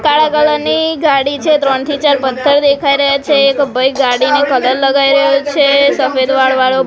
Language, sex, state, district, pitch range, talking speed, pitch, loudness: Gujarati, female, Gujarat, Gandhinagar, 265-290 Hz, 190 wpm, 275 Hz, -11 LUFS